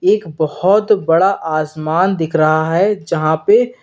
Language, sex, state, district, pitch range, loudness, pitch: Hindi, male, Uttar Pradesh, Lalitpur, 155-200 Hz, -15 LUFS, 165 Hz